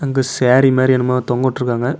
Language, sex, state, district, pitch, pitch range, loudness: Tamil, male, Tamil Nadu, Namakkal, 130 Hz, 125-130 Hz, -15 LUFS